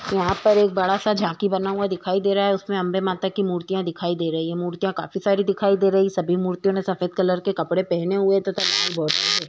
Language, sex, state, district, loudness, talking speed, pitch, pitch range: Hindi, female, Uttar Pradesh, Jyotiba Phule Nagar, -22 LUFS, 265 wpm, 190 Hz, 180-200 Hz